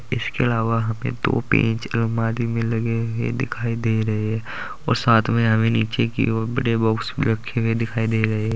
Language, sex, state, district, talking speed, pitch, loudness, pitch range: Hindi, male, Uttar Pradesh, Saharanpur, 190 wpm, 115 Hz, -22 LUFS, 110-115 Hz